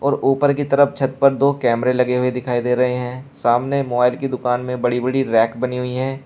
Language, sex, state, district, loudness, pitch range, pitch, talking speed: Hindi, male, Uttar Pradesh, Shamli, -18 LUFS, 125-135 Hz, 125 Hz, 240 wpm